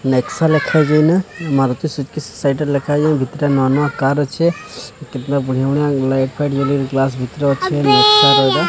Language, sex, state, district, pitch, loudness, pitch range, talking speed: Odia, male, Odisha, Sambalpur, 140 Hz, -15 LUFS, 135-150 Hz, 170 wpm